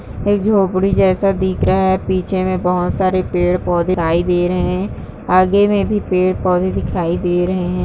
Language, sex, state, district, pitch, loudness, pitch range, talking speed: Hindi, female, Uttarakhand, Uttarkashi, 185 Hz, -16 LUFS, 180-190 Hz, 175 wpm